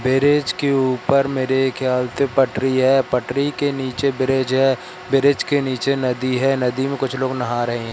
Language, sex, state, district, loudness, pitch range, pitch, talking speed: Hindi, male, Madhya Pradesh, Katni, -19 LUFS, 130-140 Hz, 135 Hz, 190 wpm